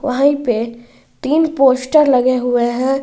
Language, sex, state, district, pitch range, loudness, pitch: Hindi, female, Jharkhand, Garhwa, 245-285 Hz, -14 LUFS, 260 Hz